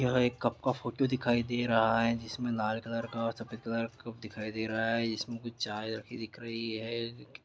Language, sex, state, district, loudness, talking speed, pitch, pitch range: Hindi, male, Bihar, East Champaran, -33 LUFS, 225 wpm, 115 Hz, 110-120 Hz